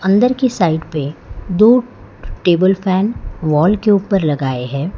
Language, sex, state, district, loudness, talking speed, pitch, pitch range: Hindi, male, Gujarat, Valsad, -15 LUFS, 145 wpm, 185 Hz, 155-210 Hz